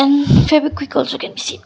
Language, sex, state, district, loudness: English, female, Assam, Kamrup Metropolitan, -15 LUFS